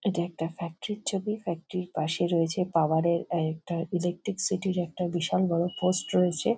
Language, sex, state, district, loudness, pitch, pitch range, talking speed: Bengali, female, West Bengal, Kolkata, -29 LUFS, 175 Hz, 170-185 Hz, 210 wpm